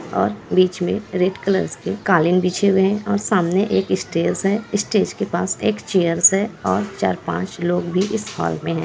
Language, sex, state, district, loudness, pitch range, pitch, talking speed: Hindi, female, Bihar, Kishanganj, -19 LUFS, 170-200 Hz, 185 Hz, 205 wpm